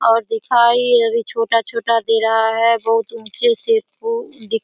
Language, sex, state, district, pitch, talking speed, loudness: Hindi, female, Bihar, Samastipur, 230 Hz, 170 wpm, -17 LUFS